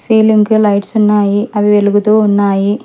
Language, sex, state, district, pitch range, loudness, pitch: Telugu, male, Telangana, Hyderabad, 205-215 Hz, -11 LUFS, 210 Hz